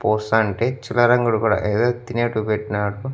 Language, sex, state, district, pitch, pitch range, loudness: Telugu, male, Andhra Pradesh, Annamaya, 110 Hz, 105-120 Hz, -20 LUFS